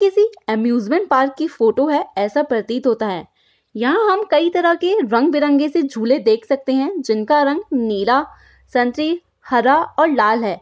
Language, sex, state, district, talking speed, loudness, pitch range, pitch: Hindi, female, Bihar, Saran, 165 wpm, -17 LUFS, 235-320 Hz, 275 Hz